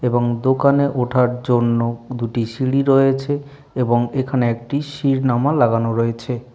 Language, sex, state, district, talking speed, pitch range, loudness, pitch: Bengali, male, West Bengal, Jalpaiguri, 120 wpm, 120-135 Hz, -18 LUFS, 125 Hz